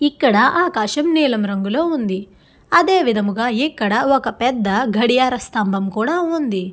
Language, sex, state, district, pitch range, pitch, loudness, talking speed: Telugu, female, Andhra Pradesh, Guntur, 210-290 Hz, 240 Hz, -17 LUFS, 125 wpm